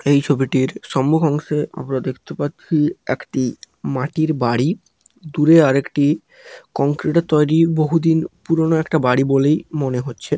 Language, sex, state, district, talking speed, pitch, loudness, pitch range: Bengali, male, West Bengal, Paschim Medinipur, 125 wpm, 150 Hz, -18 LUFS, 135-160 Hz